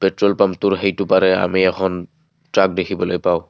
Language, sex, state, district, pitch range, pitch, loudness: Assamese, male, Assam, Kamrup Metropolitan, 95-100 Hz, 95 Hz, -17 LUFS